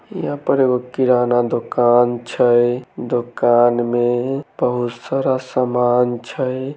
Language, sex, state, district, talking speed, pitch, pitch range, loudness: Maithili, male, Bihar, Samastipur, 105 wpm, 125 Hz, 120-130 Hz, -18 LUFS